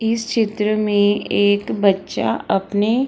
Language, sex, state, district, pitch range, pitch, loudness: Hindi, female, Bihar, Samastipur, 205-225 Hz, 210 Hz, -18 LUFS